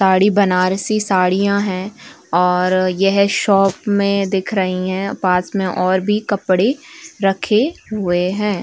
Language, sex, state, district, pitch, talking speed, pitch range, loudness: Hindi, female, Uttar Pradesh, Varanasi, 195 Hz, 130 wpm, 185-205 Hz, -17 LUFS